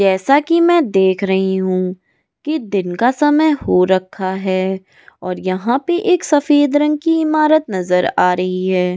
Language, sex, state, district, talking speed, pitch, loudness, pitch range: Hindi, female, Goa, North and South Goa, 175 wpm, 195 Hz, -15 LUFS, 185-300 Hz